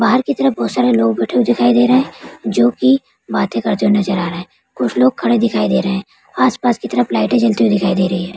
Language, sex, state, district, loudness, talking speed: Hindi, female, Bihar, Araria, -15 LUFS, 270 wpm